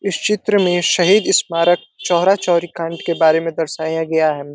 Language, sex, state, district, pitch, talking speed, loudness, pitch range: Hindi, male, Uttar Pradesh, Deoria, 170 Hz, 185 wpm, -16 LUFS, 160-180 Hz